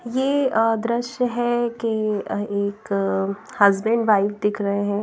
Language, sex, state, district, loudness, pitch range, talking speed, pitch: Hindi, female, Bihar, Patna, -21 LUFS, 200-235 Hz, 145 wpm, 215 Hz